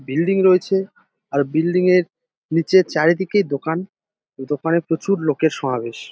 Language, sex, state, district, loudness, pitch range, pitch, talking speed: Bengali, male, West Bengal, Dakshin Dinajpur, -19 LUFS, 150-190 Hz, 165 Hz, 125 wpm